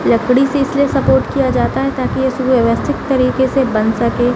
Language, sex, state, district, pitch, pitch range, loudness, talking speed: Hindi, female, Bihar, Gaya, 260 Hz, 245-270 Hz, -14 LUFS, 195 wpm